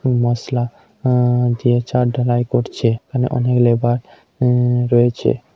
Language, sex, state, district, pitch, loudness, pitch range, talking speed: Bengali, male, West Bengal, Kolkata, 120 Hz, -17 LUFS, 120-125 Hz, 120 wpm